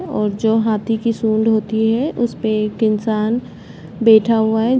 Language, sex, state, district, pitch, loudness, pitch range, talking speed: Hindi, female, Chhattisgarh, Bastar, 220 Hz, -17 LUFS, 215-230 Hz, 160 wpm